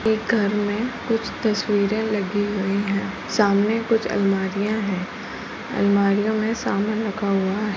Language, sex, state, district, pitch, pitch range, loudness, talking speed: Hindi, female, Uttar Pradesh, Jalaun, 205 Hz, 200-220 Hz, -22 LUFS, 145 wpm